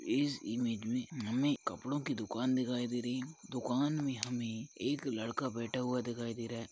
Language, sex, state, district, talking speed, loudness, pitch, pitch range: Hindi, male, Chhattisgarh, Balrampur, 195 wpm, -37 LUFS, 125 Hz, 115-135 Hz